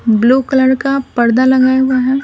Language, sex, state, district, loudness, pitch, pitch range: Hindi, female, Bihar, Patna, -12 LUFS, 260 Hz, 255-265 Hz